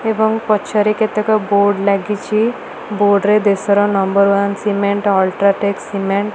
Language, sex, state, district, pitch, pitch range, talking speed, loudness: Odia, female, Odisha, Malkangiri, 205 Hz, 200-215 Hz, 150 wpm, -15 LUFS